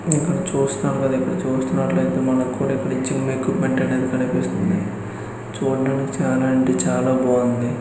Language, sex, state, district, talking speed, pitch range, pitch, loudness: Telugu, male, Andhra Pradesh, Guntur, 110 wpm, 125-135 Hz, 130 Hz, -20 LUFS